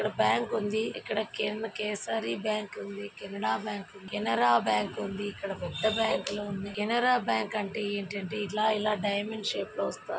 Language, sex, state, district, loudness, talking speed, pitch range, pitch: Telugu, female, Andhra Pradesh, Srikakulam, -30 LUFS, 165 wpm, 195-215 Hz, 205 Hz